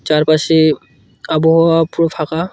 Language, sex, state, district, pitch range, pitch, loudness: Bengali, male, West Bengal, Cooch Behar, 155-165 Hz, 160 Hz, -13 LUFS